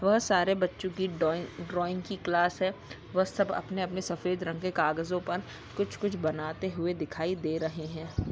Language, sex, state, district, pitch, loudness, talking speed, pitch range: Hindi, male, Bihar, Samastipur, 175 Hz, -31 LUFS, 175 wpm, 160-185 Hz